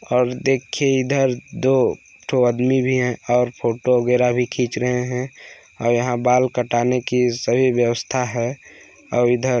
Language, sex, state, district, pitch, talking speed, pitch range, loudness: Hindi, male, Chhattisgarh, Balrampur, 125 Hz, 160 wpm, 120-130 Hz, -19 LUFS